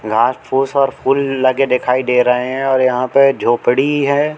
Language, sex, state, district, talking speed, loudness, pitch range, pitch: Hindi, male, Madhya Pradesh, Katni, 190 wpm, -14 LUFS, 125-135 Hz, 135 Hz